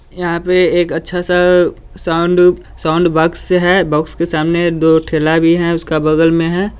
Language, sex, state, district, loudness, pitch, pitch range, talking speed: Hindi, male, Bihar, Muzaffarpur, -13 LUFS, 170 Hz, 160-180 Hz, 175 wpm